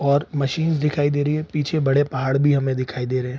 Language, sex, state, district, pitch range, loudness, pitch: Hindi, male, Bihar, Supaul, 135-150 Hz, -21 LUFS, 145 Hz